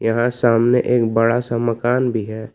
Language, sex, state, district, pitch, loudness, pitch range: Hindi, male, Jharkhand, Palamu, 120 Hz, -18 LUFS, 115-120 Hz